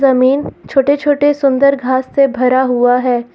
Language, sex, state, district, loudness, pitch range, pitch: Hindi, female, Uttar Pradesh, Lucknow, -13 LUFS, 255-280 Hz, 265 Hz